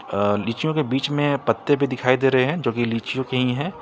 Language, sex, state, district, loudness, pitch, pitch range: Hindi, male, Jharkhand, Ranchi, -21 LUFS, 130 Hz, 115-145 Hz